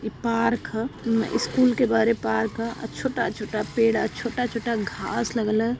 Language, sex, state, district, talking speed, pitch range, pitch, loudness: Hindi, female, Uttar Pradesh, Varanasi, 185 wpm, 225-235 Hz, 230 Hz, -24 LUFS